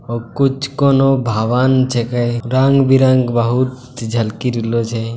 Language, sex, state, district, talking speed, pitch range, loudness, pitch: Angika, male, Bihar, Bhagalpur, 130 wpm, 115-130 Hz, -15 LUFS, 125 Hz